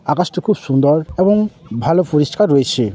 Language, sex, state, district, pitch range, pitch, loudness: Bengali, male, West Bengal, Jhargram, 140-185 Hz, 155 Hz, -15 LUFS